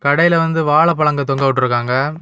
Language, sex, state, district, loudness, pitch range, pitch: Tamil, male, Tamil Nadu, Kanyakumari, -15 LUFS, 135-160 Hz, 145 Hz